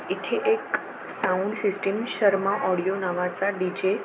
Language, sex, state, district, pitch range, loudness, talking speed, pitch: Marathi, female, Maharashtra, Aurangabad, 185-205 Hz, -25 LUFS, 135 wpm, 195 Hz